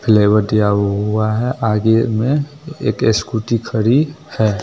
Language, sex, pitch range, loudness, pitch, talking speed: Bhojpuri, male, 105-125 Hz, -16 LUFS, 110 Hz, 130 wpm